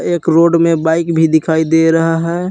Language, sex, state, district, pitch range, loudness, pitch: Hindi, male, Jharkhand, Palamu, 160-170 Hz, -12 LUFS, 165 Hz